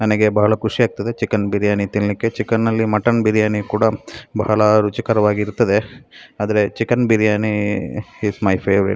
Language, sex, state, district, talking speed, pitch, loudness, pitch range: Kannada, male, Karnataka, Dakshina Kannada, 125 wpm, 105 Hz, -18 LUFS, 105-110 Hz